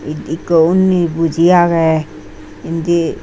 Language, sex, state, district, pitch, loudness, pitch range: Chakma, female, Tripura, Unakoti, 165 Hz, -14 LUFS, 155-170 Hz